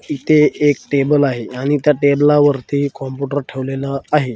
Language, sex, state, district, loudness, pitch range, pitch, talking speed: Marathi, male, Maharashtra, Washim, -16 LUFS, 135-145 Hz, 140 Hz, 135 wpm